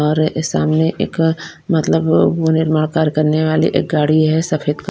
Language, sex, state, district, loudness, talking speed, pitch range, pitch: Hindi, female, Bihar, Patna, -16 LUFS, 185 wpm, 155-160 Hz, 155 Hz